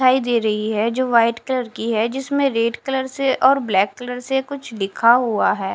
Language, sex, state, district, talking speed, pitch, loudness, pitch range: Hindi, female, Punjab, Fazilka, 220 wpm, 245 Hz, -19 LUFS, 225-265 Hz